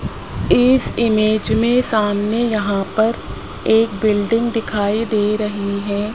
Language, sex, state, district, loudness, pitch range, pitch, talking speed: Hindi, male, Rajasthan, Jaipur, -17 LUFS, 205-225 Hz, 215 Hz, 115 wpm